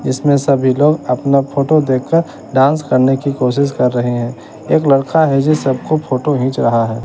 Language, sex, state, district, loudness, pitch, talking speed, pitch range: Hindi, male, Bihar, West Champaran, -14 LUFS, 135 Hz, 185 wpm, 130-150 Hz